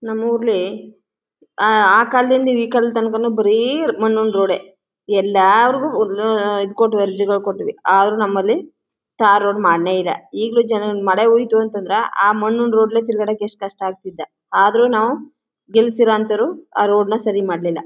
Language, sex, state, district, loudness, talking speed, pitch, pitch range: Kannada, female, Karnataka, Chamarajanagar, -16 LUFS, 140 wpm, 215 Hz, 200-230 Hz